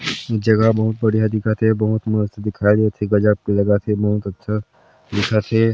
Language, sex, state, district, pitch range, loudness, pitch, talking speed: Chhattisgarhi, male, Chhattisgarh, Sarguja, 105-110 Hz, -18 LUFS, 110 Hz, 190 wpm